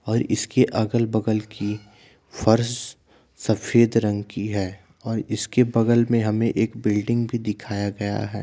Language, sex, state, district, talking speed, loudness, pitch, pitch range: Maithili, male, Bihar, Begusarai, 150 wpm, -23 LUFS, 110 Hz, 105-115 Hz